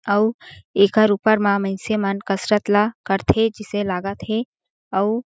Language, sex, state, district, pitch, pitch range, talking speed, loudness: Chhattisgarhi, female, Chhattisgarh, Jashpur, 205 Hz, 195-220 Hz, 135 wpm, -20 LUFS